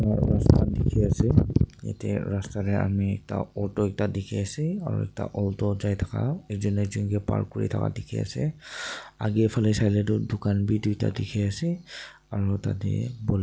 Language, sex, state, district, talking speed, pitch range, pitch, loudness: Nagamese, male, Nagaland, Dimapur, 185 wpm, 100-115 Hz, 105 Hz, -27 LUFS